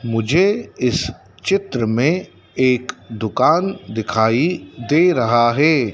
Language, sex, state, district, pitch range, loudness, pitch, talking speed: Hindi, male, Madhya Pradesh, Dhar, 115-175 Hz, -18 LUFS, 130 Hz, 100 wpm